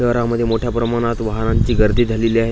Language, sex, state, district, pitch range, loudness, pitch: Marathi, male, Maharashtra, Washim, 110-120 Hz, -17 LUFS, 115 Hz